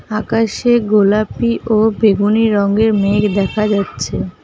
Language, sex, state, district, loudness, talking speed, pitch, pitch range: Bengali, female, West Bengal, Alipurduar, -14 LUFS, 110 wpm, 215 Hz, 205-220 Hz